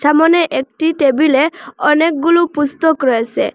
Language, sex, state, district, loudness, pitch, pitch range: Bengali, female, Assam, Hailakandi, -14 LUFS, 305 Hz, 275-325 Hz